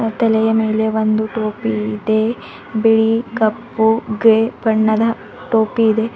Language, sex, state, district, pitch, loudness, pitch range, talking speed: Kannada, female, Karnataka, Bidar, 220 Hz, -16 LUFS, 220-225 Hz, 105 wpm